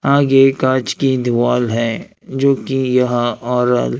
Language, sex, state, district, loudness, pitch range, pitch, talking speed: Hindi, male, Maharashtra, Gondia, -15 LUFS, 120-135 Hz, 125 Hz, 135 wpm